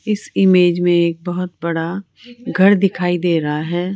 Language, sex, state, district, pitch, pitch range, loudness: Hindi, female, Rajasthan, Jaipur, 180 Hz, 170-195 Hz, -16 LUFS